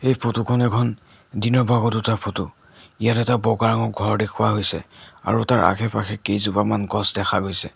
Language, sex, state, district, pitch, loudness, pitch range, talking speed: Assamese, male, Assam, Sonitpur, 105 Hz, -21 LUFS, 100-115 Hz, 170 wpm